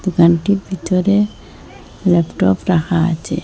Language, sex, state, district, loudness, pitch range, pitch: Bengali, female, Assam, Hailakandi, -16 LUFS, 170-190 Hz, 180 Hz